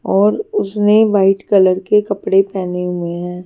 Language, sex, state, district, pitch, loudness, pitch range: Hindi, female, Haryana, Charkhi Dadri, 195 Hz, -15 LUFS, 180-210 Hz